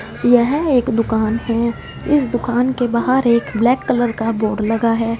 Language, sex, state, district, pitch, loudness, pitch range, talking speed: Hindi, female, Punjab, Fazilka, 235 Hz, -17 LUFS, 230-250 Hz, 175 wpm